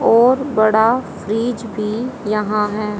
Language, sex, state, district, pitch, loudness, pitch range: Hindi, female, Haryana, Rohtak, 220 Hz, -17 LUFS, 215-240 Hz